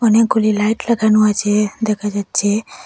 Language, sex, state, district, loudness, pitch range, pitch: Bengali, female, Assam, Hailakandi, -16 LUFS, 205-220 Hz, 215 Hz